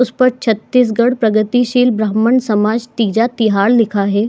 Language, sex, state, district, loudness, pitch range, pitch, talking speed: Hindi, female, Chhattisgarh, Bilaspur, -14 LUFS, 215-245 Hz, 225 Hz, 155 wpm